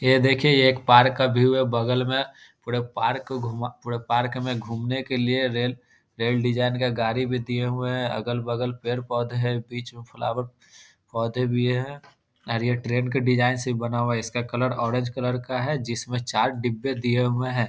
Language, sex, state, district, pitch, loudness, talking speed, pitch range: Hindi, male, Bihar, Muzaffarpur, 125 Hz, -24 LUFS, 200 wpm, 120-125 Hz